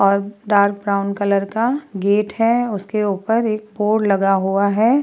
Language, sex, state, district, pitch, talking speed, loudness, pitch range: Hindi, female, Uttar Pradesh, Muzaffarnagar, 205 Hz, 155 wpm, -18 LUFS, 200-220 Hz